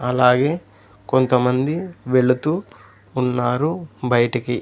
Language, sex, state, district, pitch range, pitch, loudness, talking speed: Telugu, male, Andhra Pradesh, Sri Satya Sai, 120-140 Hz, 125 Hz, -20 LUFS, 65 wpm